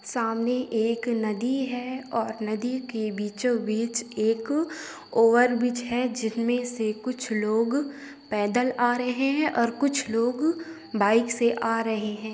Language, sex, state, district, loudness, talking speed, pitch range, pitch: Hindi, female, Bihar, Gopalganj, -26 LUFS, 135 wpm, 225-255 Hz, 235 Hz